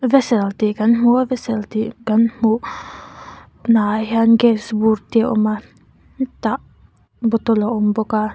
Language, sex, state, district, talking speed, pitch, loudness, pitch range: Mizo, female, Mizoram, Aizawl, 170 wpm, 225 Hz, -18 LUFS, 215-230 Hz